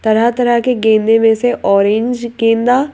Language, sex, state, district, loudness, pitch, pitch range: Hindi, female, Madhya Pradesh, Bhopal, -13 LUFS, 230 Hz, 220-245 Hz